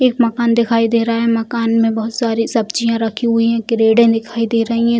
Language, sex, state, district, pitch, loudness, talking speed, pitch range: Hindi, female, Bihar, Bhagalpur, 230 Hz, -15 LUFS, 225 wpm, 225-235 Hz